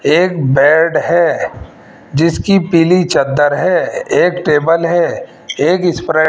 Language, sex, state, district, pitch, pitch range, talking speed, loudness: Hindi, female, Rajasthan, Jaipur, 165 Hz, 155-180 Hz, 125 wpm, -12 LUFS